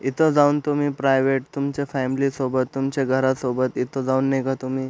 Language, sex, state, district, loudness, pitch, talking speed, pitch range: Marathi, male, Maharashtra, Aurangabad, -22 LUFS, 135 Hz, 170 wpm, 130-140 Hz